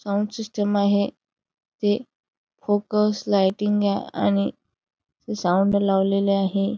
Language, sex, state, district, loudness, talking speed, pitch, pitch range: Marathi, female, Karnataka, Belgaum, -22 LUFS, 90 wpm, 200 Hz, 195-210 Hz